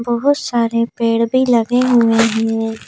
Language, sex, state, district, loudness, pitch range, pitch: Hindi, female, Madhya Pradesh, Bhopal, -15 LUFS, 230-245 Hz, 230 Hz